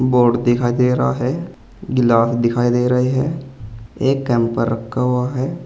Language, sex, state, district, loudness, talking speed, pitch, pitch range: Hindi, male, Uttar Pradesh, Saharanpur, -17 LUFS, 160 wpm, 125 Hz, 115-130 Hz